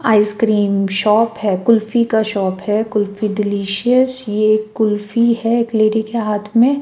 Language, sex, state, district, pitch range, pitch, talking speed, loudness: Hindi, female, Chhattisgarh, Raipur, 210-230 Hz, 215 Hz, 160 wpm, -16 LUFS